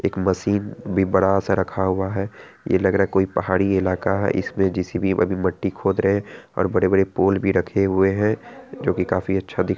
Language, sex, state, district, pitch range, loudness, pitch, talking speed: Hindi, male, Bihar, Araria, 95-100 Hz, -21 LUFS, 95 Hz, 215 wpm